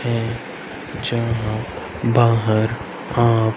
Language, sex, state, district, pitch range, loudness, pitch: Hindi, male, Haryana, Rohtak, 110-120 Hz, -20 LUFS, 115 Hz